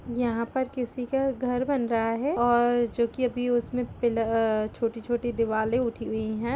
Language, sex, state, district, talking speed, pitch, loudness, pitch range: Hindi, female, Chhattisgarh, Kabirdham, 190 wpm, 240 Hz, -27 LUFS, 230-250 Hz